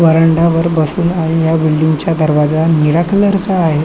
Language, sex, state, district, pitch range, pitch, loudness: Marathi, male, Maharashtra, Chandrapur, 155-170 Hz, 165 Hz, -12 LUFS